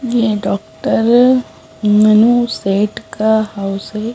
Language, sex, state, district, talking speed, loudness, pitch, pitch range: Hindi, female, Punjab, Kapurthala, 100 wpm, -14 LUFS, 215 Hz, 200-235 Hz